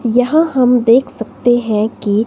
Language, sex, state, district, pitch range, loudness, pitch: Hindi, female, Himachal Pradesh, Shimla, 225-250 Hz, -13 LUFS, 240 Hz